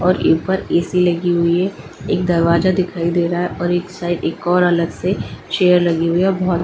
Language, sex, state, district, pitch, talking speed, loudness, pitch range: Hindi, female, Delhi, New Delhi, 175 Hz, 225 wpm, -17 LUFS, 170-180 Hz